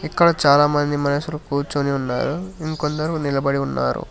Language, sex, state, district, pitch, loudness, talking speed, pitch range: Telugu, male, Telangana, Hyderabad, 145 Hz, -20 LUFS, 130 wpm, 140-155 Hz